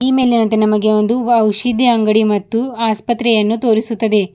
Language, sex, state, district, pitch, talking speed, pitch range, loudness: Kannada, female, Karnataka, Bidar, 225 Hz, 125 wpm, 215-240 Hz, -14 LUFS